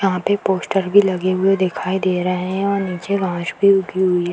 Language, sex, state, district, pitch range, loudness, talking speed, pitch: Hindi, female, Bihar, Darbhanga, 180-195 Hz, -18 LUFS, 235 wpm, 190 Hz